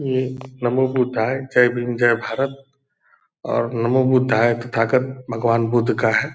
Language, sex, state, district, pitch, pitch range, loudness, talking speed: Hindi, male, Bihar, Purnia, 125 Hz, 115-130 Hz, -20 LUFS, 150 wpm